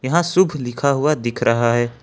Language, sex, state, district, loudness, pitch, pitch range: Hindi, male, Jharkhand, Ranchi, -18 LUFS, 130 Hz, 120-150 Hz